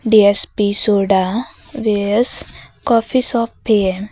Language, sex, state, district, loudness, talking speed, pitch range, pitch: Hindi, female, Uttar Pradesh, Lucknow, -15 LUFS, 85 wpm, 200-230 Hz, 215 Hz